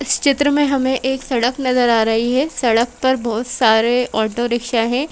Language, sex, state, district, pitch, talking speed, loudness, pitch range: Hindi, female, Madhya Pradesh, Bhopal, 245 Hz, 200 wpm, -17 LUFS, 230-265 Hz